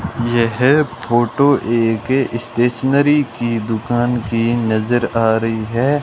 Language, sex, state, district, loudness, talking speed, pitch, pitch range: Hindi, male, Rajasthan, Bikaner, -16 LUFS, 110 wpm, 120 Hz, 115-130 Hz